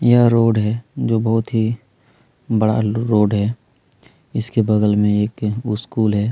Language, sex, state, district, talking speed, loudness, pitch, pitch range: Hindi, male, Chhattisgarh, Kabirdham, 140 wpm, -18 LUFS, 110 Hz, 105-115 Hz